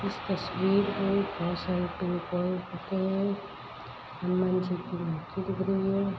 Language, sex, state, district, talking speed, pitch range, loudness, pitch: Hindi, female, Uttar Pradesh, Jyotiba Phule Nagar, 135 wpm, 180-195 Hz, -30 LUFS, 185 Hz